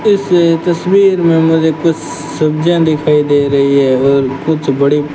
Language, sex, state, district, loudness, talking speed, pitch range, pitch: Hindi, male, Rajasthan, Bikaner, -11 LUFS, 150 wpm, 140-170 Hz, 155 Hz